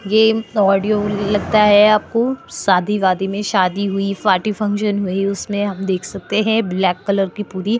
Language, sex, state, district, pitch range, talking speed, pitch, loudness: Hindi, female, Chhattisgarh, Korba, 195-215 Hz, 160 wpm, 205 Hz, -17 LUFS